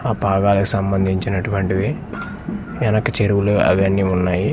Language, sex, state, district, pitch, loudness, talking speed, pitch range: Telugu, male, Andhra Pradesh, Manyam, 100 Hz, -18 LUFS, 95 wpm, 95-105 Hz